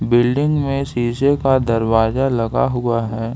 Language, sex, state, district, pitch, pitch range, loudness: Hindi, male, Jharkhand, Ranchi, 120 Hz, 115-135 Hz, -17 LUFS